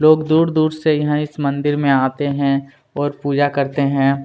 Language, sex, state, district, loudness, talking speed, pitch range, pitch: Hindi, male, Chhattisgarh, Kabirdham, -17 LUFS, 185 wpm, 140-150 Hz, 145 Hz